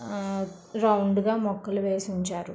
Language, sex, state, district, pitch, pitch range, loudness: Telugu, female, Andhra Pradesh, Visakhapatnam, 200 Hz, 190-205 Hz, -27 LUFS